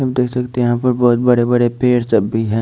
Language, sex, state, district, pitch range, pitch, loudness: Hindi, male, Chandigarh, Chandigarh, 120-125 Hz, 120 Hz, -15 LUFS